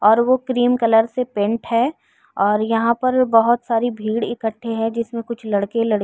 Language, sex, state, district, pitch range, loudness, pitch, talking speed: Hindi, female, Uttar Pradesh, Jyotiba Phule Nagar, 220-240 Hz, -19 LUFS, 230 Hz, 190 wpm